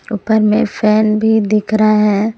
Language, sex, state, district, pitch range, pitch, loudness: Hindi, female, Jharkhand, Ranchi, 215-220 Hz, 215 Hz, -13 LUFS